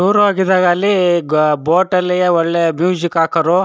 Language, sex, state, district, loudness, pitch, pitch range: Kannada, male, Karnataka, Chamarajanagar, -14 LUFS, 175 Hz, 165-185 Hz